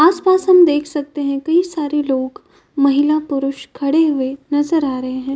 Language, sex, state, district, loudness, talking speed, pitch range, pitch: Hindi, female, Uttar Pradesh, Jyotiba Phule Nagar, -16 LUFS, 180 wpm, 275-325 Hz, 295 Hz